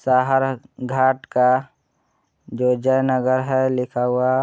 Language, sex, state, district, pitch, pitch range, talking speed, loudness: Hindi, male, Bihar, Muzaffarpur, 130 Hz, 125-130 Hz, 110 wpm, -20 LUFS